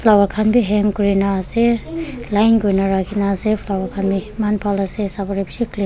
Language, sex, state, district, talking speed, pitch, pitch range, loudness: Nagamese, female, Nagaland, Kohima, 215 wpm, 205 Hz, 195-215 Hz, -18 LUFS